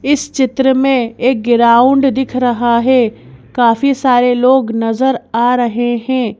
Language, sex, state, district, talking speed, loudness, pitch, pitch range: Hindi, female, Madhya Pradesh, Bhopal, 140 wpm, -12 LUFS, 245 Hz, 235-265 Hz